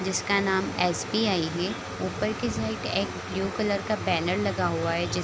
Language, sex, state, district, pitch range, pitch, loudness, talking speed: Hindi, female, Bihar, Kishanganj, 185-205 Hz, 195 Hz, -27 LUFS, 215 wpm